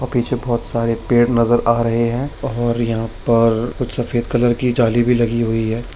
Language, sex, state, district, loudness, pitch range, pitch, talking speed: Hindi, male, Bihar, Begusarai, -18 LUFS, 115-120 Hz, 120 Hz, 210 wpm